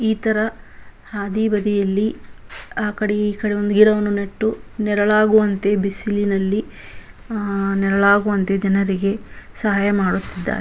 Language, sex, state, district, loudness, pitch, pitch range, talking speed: Kannada, female, Karnataka, Bijapur, -19 LUFS, 205 Hz, 200-215 Hz, 100 wpm